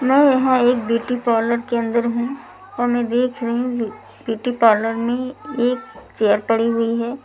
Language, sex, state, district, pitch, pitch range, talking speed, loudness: Hindi, female, Maharashtra, Mumbai Suburban, 235 Hz, 230-250 Hz, 180 wpm, -19 LUFS